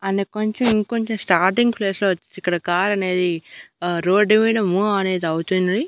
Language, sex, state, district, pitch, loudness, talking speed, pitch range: Telugu, female, Andhra Pradesh, Annamaya, 195 Hz, -20 LUFS, 165 wpm, 180-215 Hz